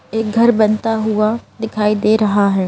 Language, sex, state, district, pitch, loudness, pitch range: Hindi, female, Madhya Pradesh, Bhopal, 215 Hz, -15 LUFS, 210-225 Hz